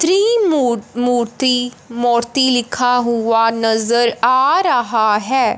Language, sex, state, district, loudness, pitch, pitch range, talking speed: Hindi, male, Punjab, Fazilka, -15 LUFS, 245 Hz, 235-265 Hz, 110 wpm